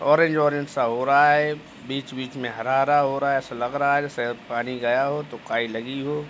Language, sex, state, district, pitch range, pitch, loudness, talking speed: Hindi, male, Uttar Pradesh, Jalaun, 125-145 Hz, 140 Hz, -23 LUFS, 230 wpm